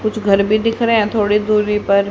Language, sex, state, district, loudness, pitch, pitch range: Hindi, male, Haryana, Rohtak, -15 LUFS, 210 Hz, 205-215 Hz